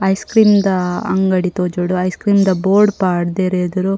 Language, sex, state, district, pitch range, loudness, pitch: Tulu, female, Karnataka, Dakshina Kannada, 180-195 Hz, -15 LUFS, 185 Hz